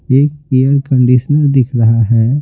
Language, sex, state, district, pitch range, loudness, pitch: Hindi, male, Bihar, Patna, 125-140 Hz, -11 LUFS, 130 Hz